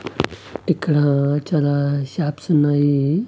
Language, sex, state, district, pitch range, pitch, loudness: Telugu, male, Andhra Pradesh, Annamaya, 140-150 Hz, 145 Hz, -19 LUFS